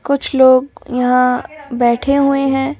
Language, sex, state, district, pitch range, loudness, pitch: Hindi, female, Delhi, New Delhi, 250-280 Hz, -14 LUFS, 270 Hz